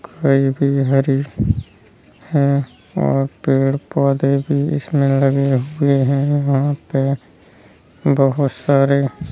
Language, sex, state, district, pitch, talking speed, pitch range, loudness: Hindi, male, Uttar Pradesh, Hamirpur, 140 Hz, 105 wpm, 135-140 Hz, -17 LUFS